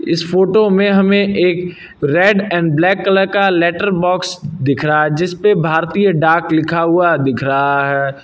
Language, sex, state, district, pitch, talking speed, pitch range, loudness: Hindi, male, Uttar Pradesh, Lucknow, 175 Hz, 165 wpm, 160-195 Hz, -14 LUFS